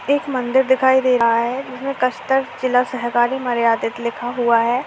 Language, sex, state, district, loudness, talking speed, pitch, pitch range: Hindi, female, Uttar Pradesh, Hamirpur, -18 LUFS, 160 wpm, 250 Hz, 240-260 Hz